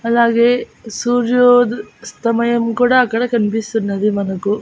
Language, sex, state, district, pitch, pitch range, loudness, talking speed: Telugu, female, Andhra Pradesh, Annamaya, 230 Hz, 215-240 Hz, -15 LUFS, 90 wpm